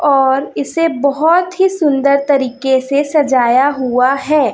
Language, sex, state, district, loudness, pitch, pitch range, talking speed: Hindi, female, Chhattisgarh, Raipur, -13 LUFS, 280 Hz, 265-300 Hz, 130 wpm